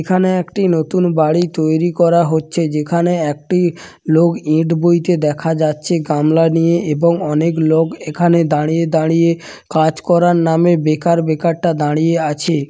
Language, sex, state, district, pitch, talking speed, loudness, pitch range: Bengali, male, West Bengal, Dakshin Dinajpur, 165 Hz, 145 wpm, -15 LUFS, 155-170 Hz